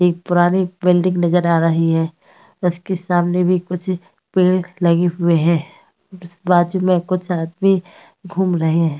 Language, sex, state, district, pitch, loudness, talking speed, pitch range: Hindi, female, Maharashtra, Chandrapur, 175 Hz, -17 LUFS, 155 wpm, 170-185 Hz